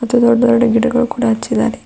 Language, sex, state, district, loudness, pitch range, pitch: Kannada, female, Karnataka, Bidar, -14 LUFS, 235-245 Hz, 235 Hz